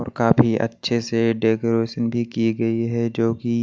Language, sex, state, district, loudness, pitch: Hindi, male, Maharashtra, Washim, -21 LUFS, 115 Hz